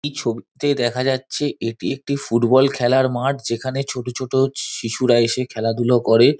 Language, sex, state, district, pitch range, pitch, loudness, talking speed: Bengali, male, West Bengal, Dakshin Dinajpur, 120-135 Hz, 130 Hz, -20 LUFS, 160 wpm